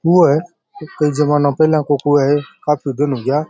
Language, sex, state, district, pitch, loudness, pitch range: Rajasthani, male, Rajasthan, Churu, 150 Hz, -15 LUFS, 145-155 Hz